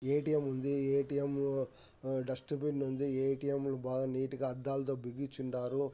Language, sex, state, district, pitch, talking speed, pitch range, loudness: Telugu, male, Andhra Pradesh, Anantapur, 135 Hz, 180 wpm, 130-140 Hz, -36 LUFS